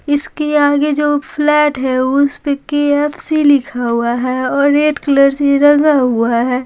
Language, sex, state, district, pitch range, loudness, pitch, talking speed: Hindi, female, Bihar, Patna, 260-295 Hz, -13 LUFS, 285 Hz, 160 wpm